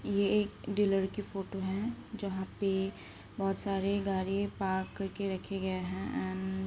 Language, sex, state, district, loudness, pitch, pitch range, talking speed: Hindi, female, Bihar, Saran, -34 LUFS, 195 Hz, 190-200 Hz, 145 wpm